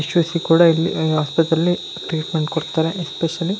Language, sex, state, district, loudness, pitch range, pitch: Kannada, male, Karnataka, Shimoga, -19 LUFS, 160-170 Hz, 165 Hz